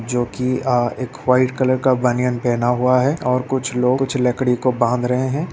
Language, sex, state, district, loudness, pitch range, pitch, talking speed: Hindi, male, Bihar, Araria, -18 LUFS, 125-130 Hz, 125 Hz, 205 wpm